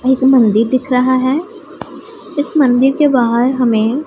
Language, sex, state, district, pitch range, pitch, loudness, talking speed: Hindi, female, Punjab, Pathankot, 250-290 Hz, 260 Hz, -13 LUFS, 160 wpm